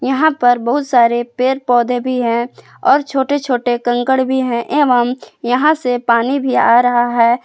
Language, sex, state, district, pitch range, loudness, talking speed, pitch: Hindi, female, Jharkhand, Palamu, 240-265 Hz, -14 LUFS, 175 wpm, 250 Hz